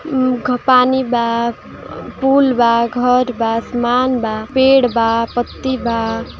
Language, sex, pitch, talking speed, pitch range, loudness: Bhojpuri, female, 245 Hz, 120 wpm, 230-255 Hz, -15 LUFS